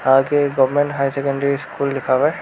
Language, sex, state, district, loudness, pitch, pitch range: Hindi, male, Arunachal Pradesh, Lower Dibang Valley, -18 LUFS, 140 Hz, 135-140 Hz